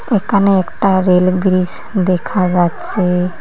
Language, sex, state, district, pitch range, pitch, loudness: Bengali, female, West Bengal, Cooch Behar, 180-195 Hz, 185 Hz, -14 LUFS